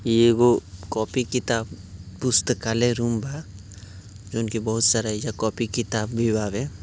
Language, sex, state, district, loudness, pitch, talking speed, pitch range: Bhojpuri, male, Uttar Pradesh, Gorakhpur, -23 LUFS, 115 Hz, 140 wpm, 100-120 Hz